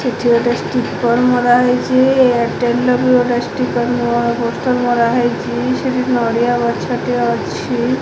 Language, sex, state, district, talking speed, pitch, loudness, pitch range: Odia, female, Odisha, Khordha, 135 wpm, 240 Hz, -15 LUFS, 235-250 Hz